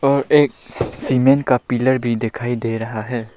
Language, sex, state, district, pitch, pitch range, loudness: Hindi, male, Arunachal Pradesh, Lower Dibang Valley, 120 Hz, 115-130 Hz, -18 LUFS